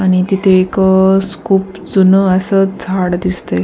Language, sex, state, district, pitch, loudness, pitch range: Marathi, female, Maharashtra, Pune, 190 Hz, -12 LUFS, 185-195 Hz